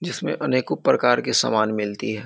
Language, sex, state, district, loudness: Hindi, male, Bihar, Muzaffarpur, -21 LUFS